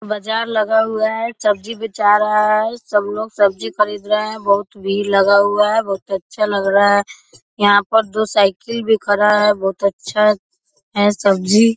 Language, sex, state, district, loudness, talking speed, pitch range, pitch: Hindi, female, Bihar, East Champaran, -16 LUFS, 185 wpm, 200-220 Hz, 210 Hz